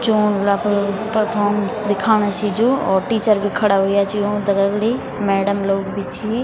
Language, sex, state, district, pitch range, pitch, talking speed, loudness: Garhwali, female, Uttarakhand, Tehri Garhwal, 200-215 Hz, 205 Hz, 175 wpm, -17 LUFS